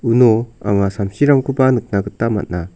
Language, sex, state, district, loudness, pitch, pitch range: Garo, male, Meghalaya, South Garo Hills, -16 LUFS, 115 Hz, 100-125 Hz